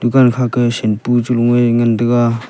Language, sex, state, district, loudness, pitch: Wancho, male, Arunachal Pradesh, Longding, -14 LUFS, 120 Hz